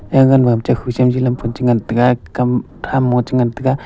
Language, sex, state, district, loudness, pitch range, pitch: Wancho, male, Arunachal Pradesh, Longding, -15 LUFS, 120-130 Hz, 125 Hz